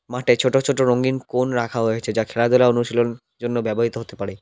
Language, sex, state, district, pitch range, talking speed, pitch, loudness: Bengali, male, West Bengal, Cooch Behar, 115-125 Hz, 190 wpm, 120 Hz, -20 LUFS